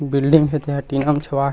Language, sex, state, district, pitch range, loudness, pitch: Chhattisgarhi, male, Chhattisgarh, Rajnandgaon, 140-150 Hz, -18 LUFS, 145 Hz